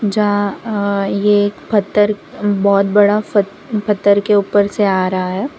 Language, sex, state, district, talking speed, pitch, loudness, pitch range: Hindi, female, Gujarat, Valsad, 150 wpm, 205 Hz, -15 LUFS, 200-210 Hz